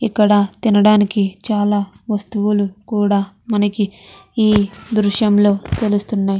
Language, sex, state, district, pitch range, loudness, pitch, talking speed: Telugu, female, Andhra Pradesh, Chittoor, 200-210 Hz, -16 LUFS, 205 Hz, 95 wpm